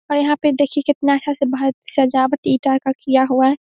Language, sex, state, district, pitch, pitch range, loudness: Hindi, female, Bihar, Saharsa, 275 Hz, 265-290 Hz, -17 LUFS